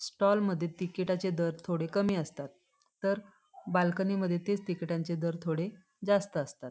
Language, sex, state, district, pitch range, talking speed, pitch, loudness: Marathi, female, Maharashtra, Pune, 170-195 Hz, 135 wpm, 180 Hz, -32 LUFS